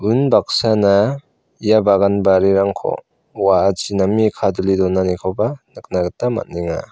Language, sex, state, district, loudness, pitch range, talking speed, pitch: Garo, male, Meghalaya, South Garo Hills, -17 LUFS, 95-110 Hz, 95 wpm, 100 Hz